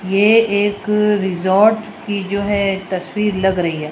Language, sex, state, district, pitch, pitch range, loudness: Hindi, female, Rajasthan, Jaipur, 200 Hz, 190-210 Hz, -16 LUFS